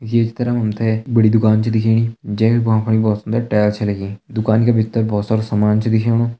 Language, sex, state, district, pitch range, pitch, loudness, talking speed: Hindi, male, Uttarakhand, Tehri Garhwal, 110-115 Hz, 110 Hz, -17 LUFS, 245 wpm